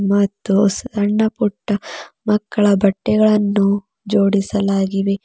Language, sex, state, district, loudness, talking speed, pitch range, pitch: Kannada, female, Karnataka, Bidar, -17 LUFS, 70 wpm, 200-210 Hz, 205 Hz